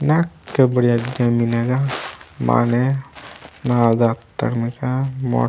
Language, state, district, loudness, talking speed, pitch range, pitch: Gondi, Chhattisgarh, Sukma, -19 LUFS, 85 wpm, 115-130 Hz, 125 Hz